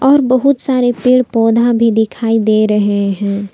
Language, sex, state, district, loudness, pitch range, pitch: Hindi, female, Jharkhand, Palamu, -12 LUFS, 215-255 Hz, 230 Hz